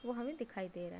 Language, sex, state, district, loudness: Hindi, female, Uttar Pradesh, Deoria, -43 LUFS